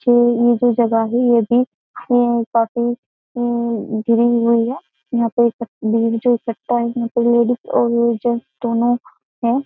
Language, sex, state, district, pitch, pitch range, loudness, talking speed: Hindi, female, Uttar Pradesh, Jyotiba Phule Nagar, 235 Hz, 230-240 Hz, -17 LUFS, 145 wpm